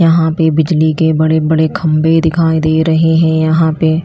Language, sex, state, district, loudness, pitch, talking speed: Hindi, female, Chhattisgarh, Raipur, -11 LUFS, 160 Hz, 195 wpm